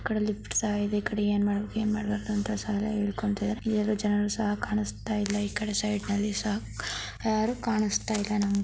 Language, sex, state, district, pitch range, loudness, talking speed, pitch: Kannada, female, Karnataka, Dharwad, 205-215 Hz, -29 LUFS, 195 wpm, 210 Hz